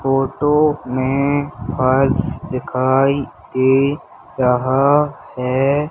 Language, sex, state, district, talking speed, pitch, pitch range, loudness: Hindi, male, Madhya Pradesh, Umaria, 70 wpm, 135 Hz, 130-145 Hz, -17 LUFS